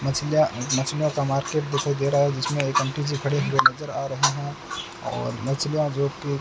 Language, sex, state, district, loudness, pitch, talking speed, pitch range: Hindi, male, Rajasthan, Bikaner, -24 LUFS, 140 Hz, 195 wpm, 135-145 Hz